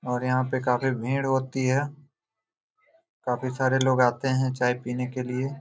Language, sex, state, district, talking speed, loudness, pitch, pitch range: Hindi, male, Jharkhand, Jamtara, 170 wpm, -26 LUFS, 130 Hz, 125-135 Hz